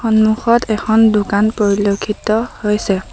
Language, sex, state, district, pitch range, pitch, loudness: Assamese, female, Assam, Sonitpur, 205-220 Hz, 215 Hz, -15 LUFS